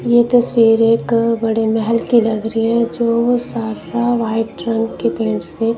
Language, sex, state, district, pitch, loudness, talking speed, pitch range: Hindi, female, Punjab, Kapurthala, 230 Hz, -16 LUFS, 175 wpm, 225-235 Hz